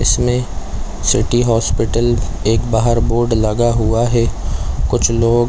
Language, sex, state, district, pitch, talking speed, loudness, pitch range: Hindi, male, Chhattisgarh, Korba, 115 Hz, 130 wpm, -16 LUFS, 110-120 Hz